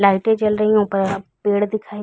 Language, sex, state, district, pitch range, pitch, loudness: Hindi, female, Chhattisgarh, Balrampur, 195-215 Hz, 205 Hz, -19 LUFS